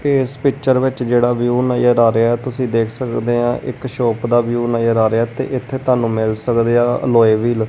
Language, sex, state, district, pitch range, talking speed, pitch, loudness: Punjabi, male, Punjab, Kapurthala, 115-130 Hz, 210 wpm, 120 Hz, -16 LUFS